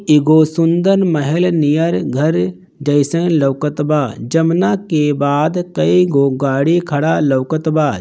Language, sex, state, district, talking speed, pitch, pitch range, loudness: Bhojpuri, male, Bihar, Gopalganj, 125 wpm, 155 Hz, 145-165 Hz, -15 LUFS